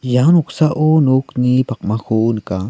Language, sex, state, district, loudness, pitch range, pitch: Garo, male, Meghalaya, South Garo Hills, -15 LUFS, 110-155 Hz, 125 Hz